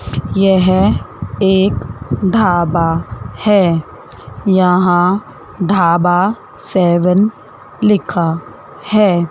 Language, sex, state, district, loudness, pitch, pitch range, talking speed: Hindi, female, Chandigarh, Chandigarh, -14 LUFS, 175 Hz, 160-195 Hz, 60 wpm